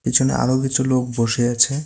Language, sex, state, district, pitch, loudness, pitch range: Bengali, male, West Bengal, Cooch Behar, 130 Hz, -19 LUFS, 120-130 Hz